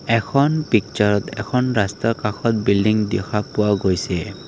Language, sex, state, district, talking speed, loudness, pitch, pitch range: Assamese, male, Assam, Kamrup Metropolitan, 120 wpm, -19 LUFS, 105 Hz, 100-115 Hz